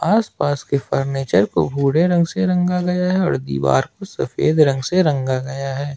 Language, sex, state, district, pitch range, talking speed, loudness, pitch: Hindi, male, Jharkhand, Ranchi, 135-180 Hz, 190 wpm, -18 LUFS, 145 Hz